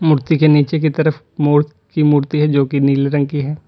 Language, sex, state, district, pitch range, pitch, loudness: Hindi, male, Uttar Pradesh, Lalitpur, 145-155 Hz, 150 Hz, -15 LUFS